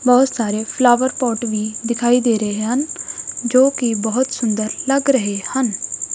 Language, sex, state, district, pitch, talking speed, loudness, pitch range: Punjabi, female, Punjab, Kapurthala, 240 Hz, 145 wpm, -18 LUFS, 215-260 Hz